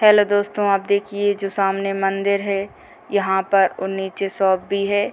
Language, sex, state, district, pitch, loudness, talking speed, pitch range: Hindi, female, Bihar, Gopalganj, 200 Hz, -20 LUFS, 150 wpm, 195-205 Hz